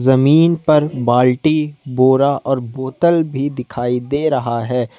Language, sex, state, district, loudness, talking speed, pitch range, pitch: Hindi, male, Jharkhand, Ranchi, -16 LUFS, 145 wpm, 125-150 Hz, 135 Hz